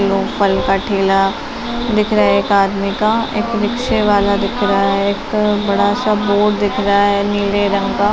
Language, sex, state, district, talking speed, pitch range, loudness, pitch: Hindi, female, Uttar Pradesh, Varanasi, 190 wpm, 200-210 Hz, -15 LUFS, 205 Hz